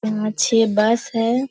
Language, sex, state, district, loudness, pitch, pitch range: Hindi, female, Bihar, Purnia, -18 LUFS, 225 Hz, 215-235 Hz